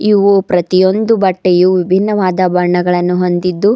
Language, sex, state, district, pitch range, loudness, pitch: Kannada, female, Karnataka, Bidar, 180-200 Hz, -12 LUFS, 185 Hz